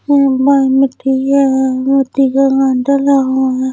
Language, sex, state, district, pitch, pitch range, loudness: Hindi, female, Delhi, New Delhi, 270 Hz, 265-275 Hz, -12 LUFS